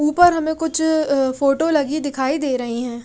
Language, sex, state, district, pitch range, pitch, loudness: Hindi, female, Haryana, Rohtak, 265-315 Hz, 290 Hz, -19 LUFS